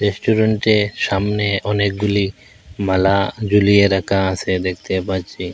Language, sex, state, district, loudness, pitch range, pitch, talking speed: Bengali, male, Assam, Hailakandi, -17 LUFS, 95-105 Hz, 100 Hz, 95 wpm